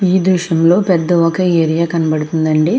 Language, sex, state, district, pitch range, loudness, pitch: Telugu, female, Andhra Pradesh, Krishna, 160-180 Hz, -14 LUFS, 170 Hz